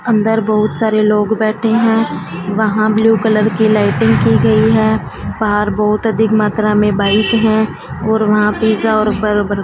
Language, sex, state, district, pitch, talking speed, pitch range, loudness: Hindi, female, Punjab, Fazilka, 215 Hz, 175 wpm, 210-220 Hz, -13 LUFS